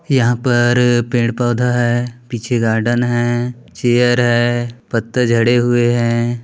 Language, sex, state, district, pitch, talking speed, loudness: Chhattisgarhi, male, Chhattisgarh, Bilaspur, 120 Hz, 130 wpm, -15 LUFS